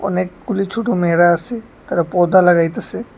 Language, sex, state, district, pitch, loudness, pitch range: Bengali, male, Tripura, West Tripura, 180 Hz, -16 LUFS, 175-195 Hz